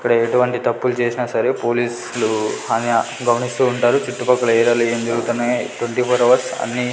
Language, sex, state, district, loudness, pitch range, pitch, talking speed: Telugu, male, Andhra Pradesh, Sri Satya Sai, -18 LUFS, 120-125 Hz, 120 Hz, 165 wpm